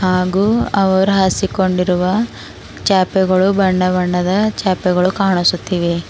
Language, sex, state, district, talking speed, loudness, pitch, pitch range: Kannada, female, Karnataka, Bidar, 70 wpm, -15 LUFS, 185 Hz, 180-195 Hz